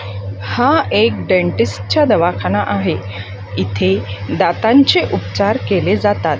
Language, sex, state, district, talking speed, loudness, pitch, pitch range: Marathi, female, Maharashtra, Gondia, 95 wpm, -15 LUFS, 100 Hz, 95-100 Hz